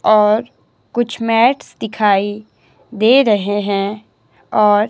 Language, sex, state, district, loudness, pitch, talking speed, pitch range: Hindi, male, Himachal Pradesh, Shimla, -15 LUFS, 215 Hz, 100 wpm, 205-225 Hz